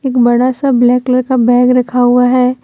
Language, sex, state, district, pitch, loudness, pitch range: Hindi, female, Jharkhand, Deoghar, 250 Hz, -11 LUFS, 245-255 Hz